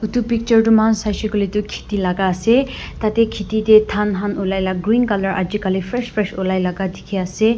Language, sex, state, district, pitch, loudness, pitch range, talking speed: Nagamese, female, Nagaland, Dimapur, 210 Hz, -18 LUFS, 190-220 Hz, 205 wpm